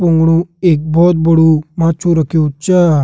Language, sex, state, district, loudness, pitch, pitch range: Hindi, male, Uttarakhand, Uttarkashi, -12 LUFS, 165 Hz, 160-170 Hz